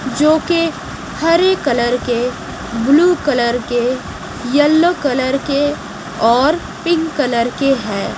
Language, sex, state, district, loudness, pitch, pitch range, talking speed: Hindi, female, Odisha, Malkangiri, -15 LUFS, 275 Hz, 245-315 Hz, 115 wpm